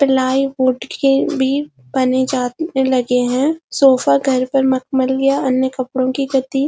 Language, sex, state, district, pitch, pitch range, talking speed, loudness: Hindi, female, Uttarakhand, Uttarkashi, 265 Hz, 255-270 Hz, 125 wpm, -16 LUFS